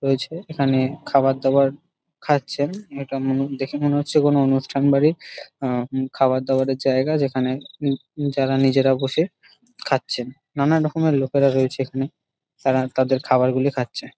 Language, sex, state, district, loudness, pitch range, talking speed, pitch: Bengali, male, West Bengal, Dakshin Dinajpur, -21 LUFS, 130-145 Hz, 155 wpm, 135 Hz